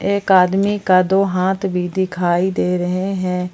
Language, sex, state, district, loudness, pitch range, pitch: Hindi, female, Jharkhand, Palamu, -17 LUFS, 180-195 Hz, 185 Hz